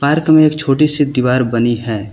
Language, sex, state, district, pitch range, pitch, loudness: Hindi, male, Uttar Pradesh, Lucknow, 120-150 Hz, 135 Hz, -13 LUFS